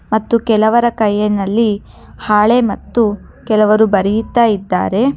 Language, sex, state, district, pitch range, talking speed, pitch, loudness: Kannada, female, Karnataka, Bangalore, 205-230 Hz, 95 wpm, 215 Hz, -14 LUFS